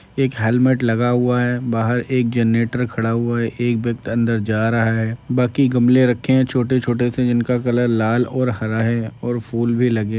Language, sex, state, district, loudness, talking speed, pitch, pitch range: Hindi, male, Uttar Pradesh, Gorakhpur, -18 LUFS, 205 wpm, 120 Hz, 115-125 Hz